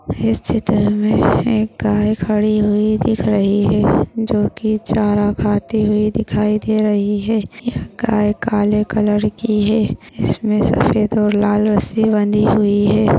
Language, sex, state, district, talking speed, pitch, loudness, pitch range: Hindi, female, Maharashtra, Nagpur, 150 wpm, 210 Hz, -16 LUFS, 205-215 Hz